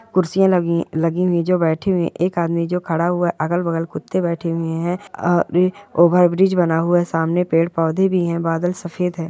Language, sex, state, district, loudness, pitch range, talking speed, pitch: Hindi, female, Bihar, Bhagalpur, -18 LUFS, 165-180 Hz, 215 wpm, 175 Hz